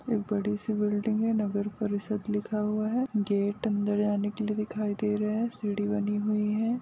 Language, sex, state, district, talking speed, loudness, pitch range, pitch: Hindi, female, Rajasthan, Nagaur, 200 wpm, -29 LUFS, 205-215 Hz, 210 Hz